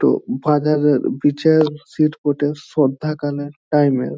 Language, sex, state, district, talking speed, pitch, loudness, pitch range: Bengali, male, West Bengal, Jhargram, 70 wpm, 150 Hz, -18 LUFS, 145-150 Hz